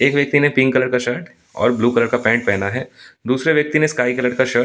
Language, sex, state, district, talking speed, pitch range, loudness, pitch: Hindi, male, Delhi, New Delhi, 285 wpm, 120-140 Hz, -17 LUFS, 130 Hz